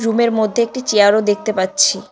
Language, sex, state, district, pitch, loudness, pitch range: Bengali, female, West Bengal, Cooch Behar, 215 Hz, -15 LUFS, 205-235 Hz